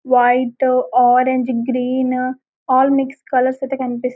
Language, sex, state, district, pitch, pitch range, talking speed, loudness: Telugu, female, Telangana, Karimnagar, 255 Hz, 250-260 Hz, 130 wpm, -17 LUFS